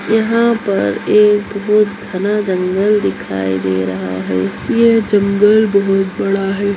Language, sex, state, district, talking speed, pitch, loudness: Hindi, female, Bihar, Muzaffarpur, 135 wpm, 200 Hz, -14 LUFS